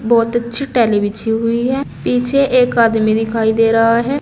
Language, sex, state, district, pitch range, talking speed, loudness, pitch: Hindi, female, Uttar Pradesh, Saharanpur, 225-245 Hz, 185 wpm, -14 LUFS, 230 Hz